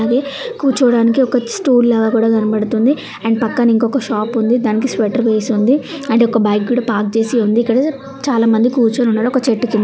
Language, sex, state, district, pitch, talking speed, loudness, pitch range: Telugu, female, Andhra Pradesh, Chittoor, 235 Hz, 190 wpm, -15 LUFS, 225-250 Hz